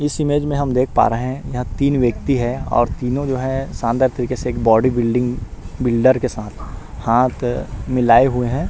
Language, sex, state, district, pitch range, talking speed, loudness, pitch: Hindi, male, Chhattisgarh, Rajnandgaon, 120-130 Hz, 205 wpm, -18 LUFS, 125 Hz